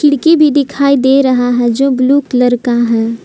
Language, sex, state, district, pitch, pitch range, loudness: Hindi, female, Jharkhand, Palamu, 260 Hz, 245-280 Hz, -11 LUFS